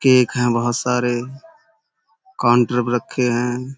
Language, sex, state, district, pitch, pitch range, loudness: Hindi, male, Uttar Pradesh, Budaun, 125 Hz, 120-145 Hz, -19 LUFS